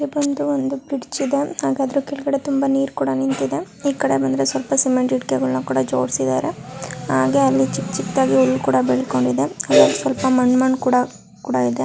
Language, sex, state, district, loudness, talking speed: Kannada, female, Karnataka, Dharwad, -19 LUFS, 140 wpm